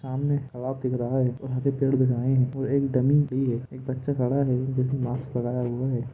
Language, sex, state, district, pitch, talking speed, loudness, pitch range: Hindi, male, Jharkhand, Jamtara, 130 Hz, 235 wpm, -26 LUFS, 125-135 Hz